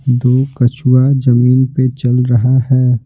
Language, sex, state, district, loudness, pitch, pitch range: Hindi, male, Bihar, Patna, -12 LUFS, 125 Hz, 125-130 Hz